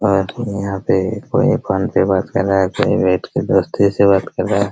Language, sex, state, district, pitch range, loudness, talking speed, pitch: Hindi, male, Bihar, Araria, 95-100 Hz, -16 LUFS, 230 wpm, 100 Hz